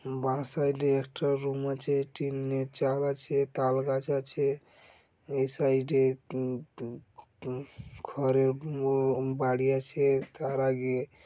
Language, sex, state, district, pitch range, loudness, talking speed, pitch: Bengali, male, West Bengal, Dakshin Dinajpur, 130-140 Hz, -30 LUFS, 135 wpm, 135 Hz